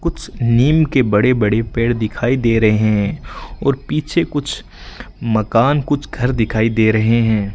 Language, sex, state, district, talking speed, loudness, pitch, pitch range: Hindi, male, Rajasthan, Bikaner, 160 wpm, -16 LUFS, 115 Hz, 110-140 Hz